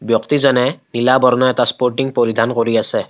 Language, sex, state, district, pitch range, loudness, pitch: Assamese, male, Assam, Kamrup Metropolitan, 120-130 Hz, -14 LUFS, 125 Hz